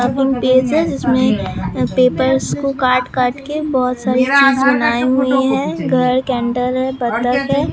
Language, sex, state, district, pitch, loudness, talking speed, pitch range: Hindi, male, Bihar, Katihar, 255 Hz, -15 LUFS, 110 wpm, 250-270 Hz